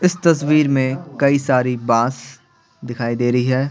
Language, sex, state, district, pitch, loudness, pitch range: Hindi, male, Bihar, Patna, 130 Hz, -17 LUFS, 120-140 Hz